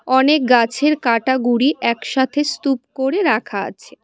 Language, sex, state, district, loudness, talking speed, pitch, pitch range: Bengali, female, West Bengal, Cooch Behar, -17 LUFS, 135 wpm, 260 Hz, 240-290 Hz